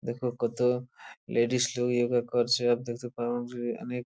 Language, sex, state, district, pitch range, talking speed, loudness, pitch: Bengali, male, West Bengal, Purulia, 120-125 Hz, 105 wpm, -29 LUFS, 120 Hz